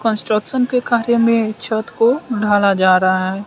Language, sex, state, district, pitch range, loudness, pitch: Hindi, male, Bihar, West Champaran, 205-235 Hz, -16 LUFS, 220 Hz